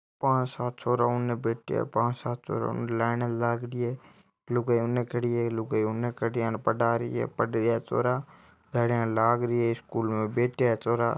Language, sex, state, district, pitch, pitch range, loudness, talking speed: Marwari, male, Rajasthan, Nagaur, 120 Hz, 115-120 Hz, -28 LUFS, 210 wpm